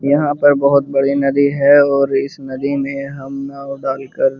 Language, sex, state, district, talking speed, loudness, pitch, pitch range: Hindi, male, Uttar Pradesh, Muzaffarnagar, 190 wpm, -15 LUFS, 140 Hz, 135-140 Hz